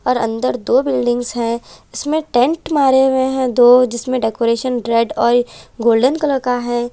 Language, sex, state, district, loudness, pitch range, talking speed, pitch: Hindi, female, Punjab, Kapurthala, -16 LUFS, 235-260 Hz, 165 wpm, 245 Hz